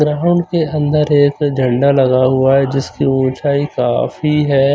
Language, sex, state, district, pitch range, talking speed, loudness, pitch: Hindi, male, Chandigarh, Chandigarh, 135-150 Hz, 150 wpm, -14 LUFS, 140 Hz